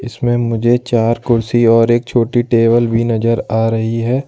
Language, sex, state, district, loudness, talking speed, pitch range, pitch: Hindi, male, Jharkhand, Ranchi, -14 LUFS, 180 wpm, 115-120 Hz, 115 Hz